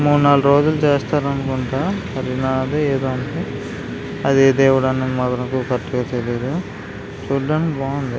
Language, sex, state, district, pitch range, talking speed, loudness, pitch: Telugu, male, Andhra Pradesh, Visakhapatnam, 125-140 Hz, 110 wpm, -19 LUFS, 135 Hz